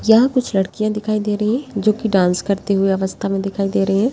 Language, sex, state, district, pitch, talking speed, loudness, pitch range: Hindi, female, Bihar, Jahanabad, 200 Hz, 260 wpm, -18 LUFS, 195-215 Hz